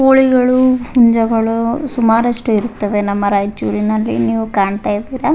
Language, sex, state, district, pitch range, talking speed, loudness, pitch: Kannada, female, Karnataka, Raichur, 200-250 Hz, 100 wpm, -14 LUFS, 225 Hz